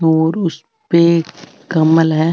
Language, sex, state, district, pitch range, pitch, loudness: Marwari, female, Rajasthan, Nagaur, 160-170 Hz, 165 Hz, -14 LUFS